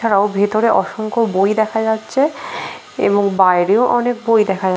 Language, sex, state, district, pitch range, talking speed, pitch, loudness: Bengali, female, West Bengal, Paschim Medinipur, 195-230 Hz, 140 wpm, 215 Hz, -16 LUFS